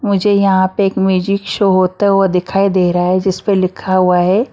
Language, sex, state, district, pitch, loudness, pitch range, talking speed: Hindi, female, Maharashtra, Mumbai Suburban, 190 Hz, -13 LUFS, 185-200 Hz, 240 wpm